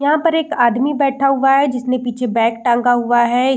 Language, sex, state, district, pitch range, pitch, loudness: Hindi, female, Bihar, Saran, 240-275 Hz, 255 Hz, -15 LUFS